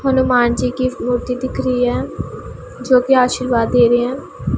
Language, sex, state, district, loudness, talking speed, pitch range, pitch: Hindi, female, Punjab, Pathankot, -16 LUFS, 170 wpm, 245-255 Hz, 250 Hz